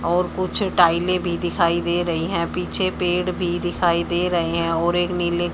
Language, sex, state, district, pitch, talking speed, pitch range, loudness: Hindi, male, Haryana, Charkhi Dadri, 175 Hz, 195 wpm, 170-180 Hz, -21 LUFS